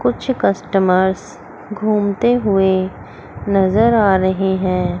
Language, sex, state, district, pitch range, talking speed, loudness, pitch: Hindi, female, Chandigarh, Chandigarh, 190-215 Hz, 95 wpm, -16 LUFS, 195 Hz